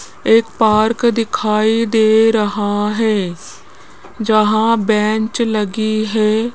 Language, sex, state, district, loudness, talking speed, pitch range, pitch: Hindi, female, Rajasthan, Jaipur, -15 LUFS, 90 wpm, 215-225 Hz, 220 Hz